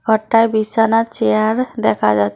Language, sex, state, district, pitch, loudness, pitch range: Bengali, female, West Bengal, Cooch Behar, 220 Hz, -15 LUFS, 195-225 Hz